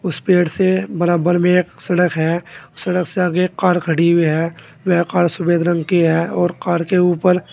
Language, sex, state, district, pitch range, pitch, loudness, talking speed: Hindi, male, Uttar Pradesh, Saharanpur, 170-180 Hz, 175 Hz, -17 LUFS, 200 wpm